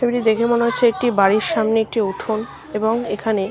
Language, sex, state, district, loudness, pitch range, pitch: Bengali, female, West Bengal, Malda, -19 LUFS, 215-235 Hz, 220 Hz